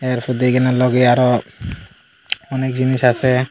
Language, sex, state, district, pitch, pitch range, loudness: Bengali, male, Tripura, Unakoti, 125 Hz, 125-130 Hz, -16 LUFS